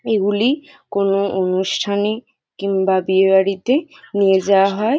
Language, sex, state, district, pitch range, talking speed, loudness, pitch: Bengali, female, West Bengal, Jhargram, 190-220 Hz, 110 wpm, -17 LUFS, 200 Hz